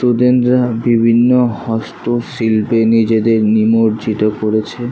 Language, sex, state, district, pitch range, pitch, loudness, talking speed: Bengali, male, West Bengal, Kolkata, 110-120 Hz, 115 Hz, -13 LUFS, 85 wpm